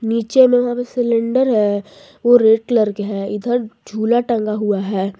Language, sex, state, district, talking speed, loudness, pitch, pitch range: Hindi, female, Jharkhand, Garhwa, 185 wpm, -16 LUFS, 225 Hz, 205-245 Hz